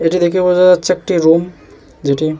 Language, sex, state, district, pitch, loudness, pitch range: Bengali, male, West Bengal, Jalpaiguri, 175 Hz, -13 LUFS, 155-180 Hz